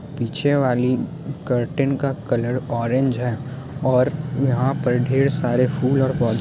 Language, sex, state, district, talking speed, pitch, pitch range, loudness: Hindi, male, Bihar, Muzaffarpur, 150 wpm, 130 Hz, 125-140 Hz, -21 LUFS